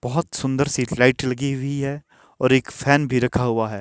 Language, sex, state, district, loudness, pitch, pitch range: Hindi, male, Himachal Pradesh, Shimla, -21 LUFS, 130 Hz, 125-140 Hz